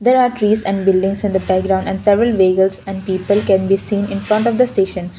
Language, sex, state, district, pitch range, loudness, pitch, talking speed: English, female, Assam, Kamrup Metropolitan, 190-210 Hz, -16 LUFS, 195 Hz, 245 wpm